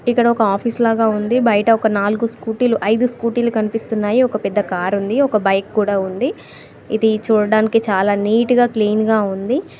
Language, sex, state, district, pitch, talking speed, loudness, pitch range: Telugu, female, Andhra Pradesh, Srikakulam, 220 Hz, 185 wpm, -17 LUFS, 205-235 Hz